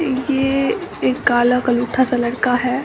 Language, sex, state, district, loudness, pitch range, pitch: Hindi, female, Bihar, Samastipur, -18 LUFS, 240-265 Hz, 250 Hz